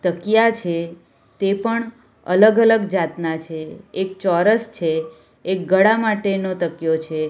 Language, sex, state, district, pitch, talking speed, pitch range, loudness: Gujarati, female, Gujarat, Valsad, 190 Hz, 125 wpm, 170-215 Hz, -19 LUFS